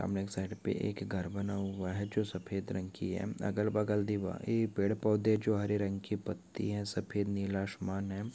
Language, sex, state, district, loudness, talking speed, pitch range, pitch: Hindi, male, Uttarakhand, Tehri Garhwal, -35 LUFS, 195 wpm, 95-105 Hz, 100 Hz